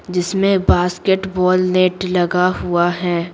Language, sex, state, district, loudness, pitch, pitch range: Hindi, female, Bihar, Patna, -16 LUFS, 180 Hz, 180-185 Hz